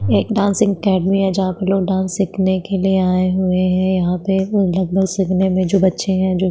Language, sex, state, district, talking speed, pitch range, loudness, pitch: Hindi, female, Chhattisgarh, Sukma, 185 wpm, 185-195 Hz, -17 LUFS, 190 Hz